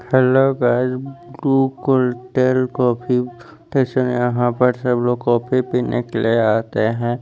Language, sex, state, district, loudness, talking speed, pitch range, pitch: Hindi, male, Chandigarh, Chandigarh, -18 LUFS, 135 wpm, 120-130 Hz, 125 Hz